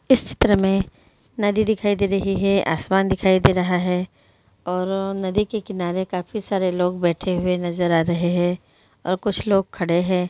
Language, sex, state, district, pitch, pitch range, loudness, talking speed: Hindi, female, Bihar, Begusarai, 185 Hz, 180-195 Hz, -21 LUFS, 180 wpm